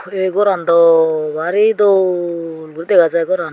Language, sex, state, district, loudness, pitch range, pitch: Chakma, female, Tripura, Unakoti, -14 LUFS, 165-190 Hz, 170 Hz